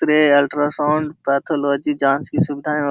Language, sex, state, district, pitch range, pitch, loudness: Hindi, male, Bihar, Jahanabad, 140-150 Hz, 145 Hz, -18 LUFS